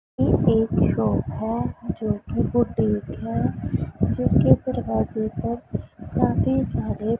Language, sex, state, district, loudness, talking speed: Hindi, female, Punjab, Pathankot, -23 LUFS, 115 wpm